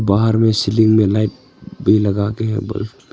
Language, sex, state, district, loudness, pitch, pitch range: Hindi, male, Arunachal Pradesh, Longding, -16 LUFS, 110 Hz, 100-110 Hz